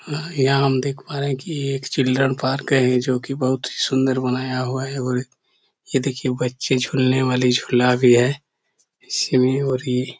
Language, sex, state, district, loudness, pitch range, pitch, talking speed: Hindi, male, Chhattisgarh, Korba, -20 LUFS, 125-135 Hz, 130 Hz, 195 wpm